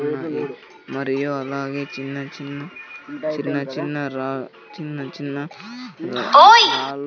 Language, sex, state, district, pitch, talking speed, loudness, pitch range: Telugu, male, Andhra Pradesh, Sri Satya Sai, 145 Hz, 110 wpm, -18 LUFS, 140-155 Hz